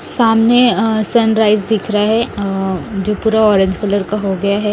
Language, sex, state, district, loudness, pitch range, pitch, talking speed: Hindi, male, Odisha, Nuapada, -13 LUFS, 200-220 Hz, 210 Hz, 175 wpm